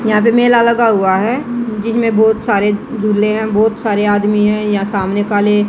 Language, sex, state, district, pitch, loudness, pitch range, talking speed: Hindi, female, Haryana, Jhajjar, 215 Hz, -13 LUFS, 205-230 Hz, 190 wpm